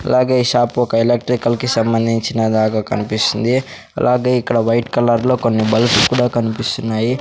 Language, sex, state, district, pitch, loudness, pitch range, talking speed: Telugu, male, Andhra Pradesh, Sri Satya Sai, 115 Hz, -16 LUFS, 110-125 Hz, 150 wpm